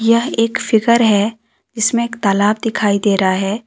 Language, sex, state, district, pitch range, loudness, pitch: Hindi, female, Jharkhand, Deoghar, 205-235 Hz, -15 LUFS, 225 Hz